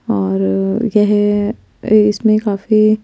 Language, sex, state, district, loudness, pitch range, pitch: Hindi, female, Chandigarh, Chandigarh, -14 LUFS, 200-215 Hz, 210 Hz